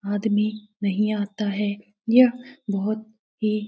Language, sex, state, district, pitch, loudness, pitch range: Hindi, female, Bihar, Lakhisarai, 210 Hz, -24 LUFS, 205-220 Hz